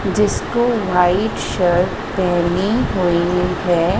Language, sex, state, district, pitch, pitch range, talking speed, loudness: Hindi, female, Madhya Pradesh, Dhar, 180 Hz, 175-200 Hz, 90 wpm, -17 LUFS